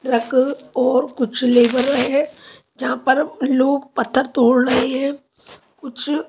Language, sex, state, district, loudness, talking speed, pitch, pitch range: Hindi, female, Punjab, Pathankot, -18 LUFS, 115 wpm, 260 Hz, 250-280 Hz